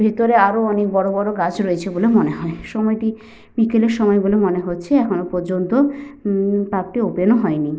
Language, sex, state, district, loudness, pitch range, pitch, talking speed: Bengali, female, Jharkhand, Sahebganj, -18 LUFS, 185-225 Hz, 205 Hz, 175 wpm